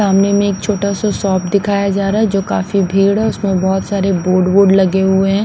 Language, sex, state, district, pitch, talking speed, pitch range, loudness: Hindi, female, Punjab, Pathankot, 195 Hz, 240 wpm, 190-200 Hz, -14 LUFS